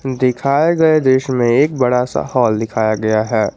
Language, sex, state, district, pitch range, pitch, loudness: Hindi, male, Jharkhand, Garhwa, 110-135 Hz, 125 Hz, -15 LUFS